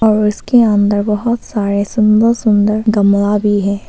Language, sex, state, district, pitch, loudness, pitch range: Hindi, female, Arunachal Pradesh, Papum Pare, 210 Hz, -13 LUFS, 205-220 Hz